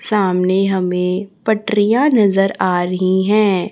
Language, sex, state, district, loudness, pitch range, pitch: Hindi, female, Chhattisgarh, Raipur, -15 LUFS, 185-210 Hz, 195 Hz